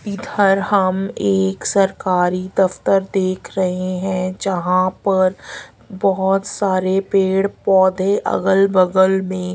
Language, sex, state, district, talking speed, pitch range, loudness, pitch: Hindi, female, Haryana, Rohtak, 105 wpm, 185-195 Hz, -17 LUFS, 190 Hz